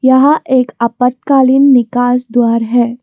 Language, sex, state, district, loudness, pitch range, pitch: Hindi, female, Assam, Kamrup Metropolitan, -11 LUFS, 240-260 Hz, 250 Hz